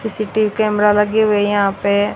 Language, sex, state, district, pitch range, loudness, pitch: Hindi, female, Haryana, Rohtak, 205-215 Hz, -16 LUFS, 210 Hz